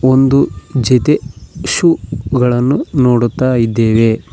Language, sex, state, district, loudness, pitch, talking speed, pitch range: Kannada, male, Karnataka, Koppal, -13 LUFS, 125 Hz, 85 wpm, 120-135 Hz